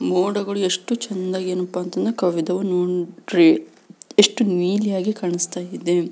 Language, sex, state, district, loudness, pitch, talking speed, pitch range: Kannada, female, Karnataka, Belgaum, -21 LUFS, 185 Hz, 110 wpm, 180-205 Hz